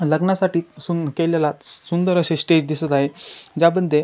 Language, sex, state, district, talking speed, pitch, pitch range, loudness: Marathi, male, Maharashtra, Chandrapur, 150 wpm, 165 Hz, 150-170 Hz, -20 LUFS